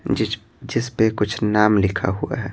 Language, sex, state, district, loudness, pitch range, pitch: Hindi, male, Bihar, Patna, -21 LUFS, 105-115 Hz, 110 Hz